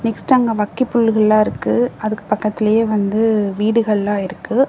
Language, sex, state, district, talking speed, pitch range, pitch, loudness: Tamil, female, Tamil Nadu, Namakkal, 130 wpm, 210-230 Hz, 215 Hz, -17 LUFS